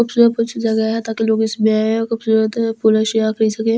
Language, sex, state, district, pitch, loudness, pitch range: Hindi, female, Delhi, New Delhi, 225 Hz, -17 LUFS, 220-230 Hz